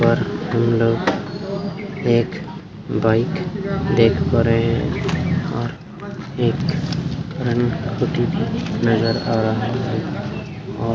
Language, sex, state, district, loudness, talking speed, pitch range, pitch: Hindi, male, Bihar, Saharsa, -20 LUFS, 95 wpm, 115-160 Hz, 125 Hz